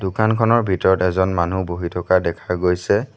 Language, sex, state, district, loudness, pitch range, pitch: Assamese, male, Assam, Sonitpur, -19 LUFS, 90-100 Hz, 95 Hz